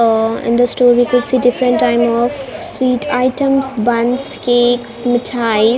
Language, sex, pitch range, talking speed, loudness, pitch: English, female, 235-255 Hz, 135 wpm, -14 LUFS, 245 Hz